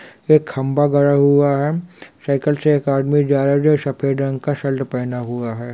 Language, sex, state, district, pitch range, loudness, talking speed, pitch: Hindi, male, Bihar, Kishanganj, 135-145 Hz, -17 LUFS, 165 wpm, 140 Hz